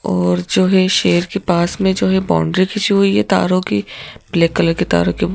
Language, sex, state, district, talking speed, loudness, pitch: Hindi, female, Madhya Pradesh, Bhopal, 225 wpm, -15 LUFS, 170 Hz